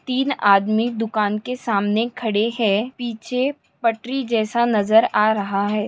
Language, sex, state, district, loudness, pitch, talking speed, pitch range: Hindi, female, Maharashtra, Aurangabad, -20 LUFS, 225 Hz, 145 wpm, 210-245 Hz